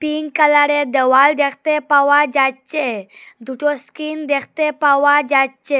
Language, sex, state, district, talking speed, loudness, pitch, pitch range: Bengali, female, Assam, Hailakandi, 115 wpm, -15 LUFS, 290 Hz, 270-300 Hz